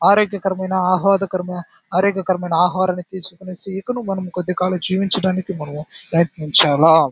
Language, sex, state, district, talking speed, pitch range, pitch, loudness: Telugu, male, Andhra Pradesh, Chittoor, 100 wpm, 180-190 Hz, 185 Hz, -19 LUFS